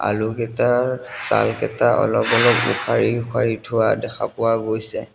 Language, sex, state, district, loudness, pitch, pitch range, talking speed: Assamese, male, Assam, Sonitpur, -19 LUFS, 115 Hz, 110-125 Hz, 115 wpm